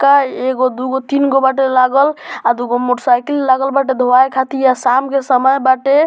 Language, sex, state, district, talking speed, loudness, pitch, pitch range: Bhojpuri, male, Bihar, Muzaffarpur, 205 wpm, -14 LUFS, 265 Hz, 255-275 Hz